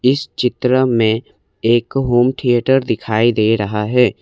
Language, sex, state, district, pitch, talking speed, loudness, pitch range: Hindi, male, Assam, Kamrup Metropolitan, 120 Hz, 140 wpm, -16 LUFS, 110-130 Hz